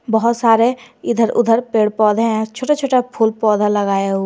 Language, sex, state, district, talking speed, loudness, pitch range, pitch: Hindi, female, Jharkhand, Garhwa, 185 wpm, -16 LUFS, 215-235 Hz, 225 Hz